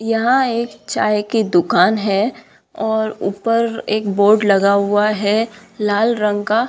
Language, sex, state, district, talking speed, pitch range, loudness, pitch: Hindi, female, Bihar, Saharsa, 145 wpm, 205-230 Hz, -17 LUFS, 215 Hz